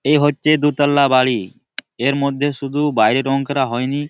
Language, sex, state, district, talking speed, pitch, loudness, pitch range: Bengali, male, West Bengal, Malda, 160 wpm, 140 Hz, -17 LUFS, 135-145 Hz